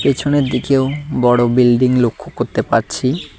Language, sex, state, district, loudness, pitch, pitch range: Bengali, male, West Bengal, Cooch Behar, -15 LUFS, 130 Hz, 120-140 Hz